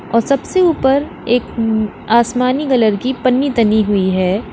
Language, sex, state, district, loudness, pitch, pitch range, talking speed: Hindi, female, Uttar Pradesh, Lalitpur, -15 LUFS, 235 Hz, 215-265 Hz, 145 wpm